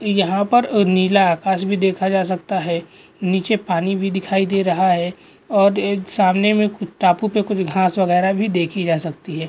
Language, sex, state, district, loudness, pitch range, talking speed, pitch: Hindi, male, Goa, North and South Goa, -18 LUFS, 185-200 Hz, 190 wpm, 190 Hz